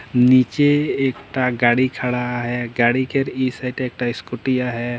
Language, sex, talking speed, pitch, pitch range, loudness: Sadri, male, 170 wpm, 125 Hz, 120-130 Hz, -19 LUFS